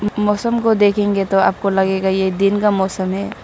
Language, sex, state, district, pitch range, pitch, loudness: Hindi, female, Arunachal Pradesh, Lower Dibang Valley, 190-210 Hz, 200 Hz, -16 LUFS